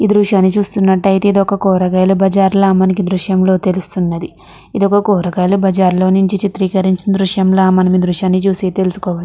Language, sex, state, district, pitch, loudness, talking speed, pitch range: Telugu, female, Andhra Pradesh, Krishna, 190 Hz, -13 LUFS, 130 wpm, 185-195 Hz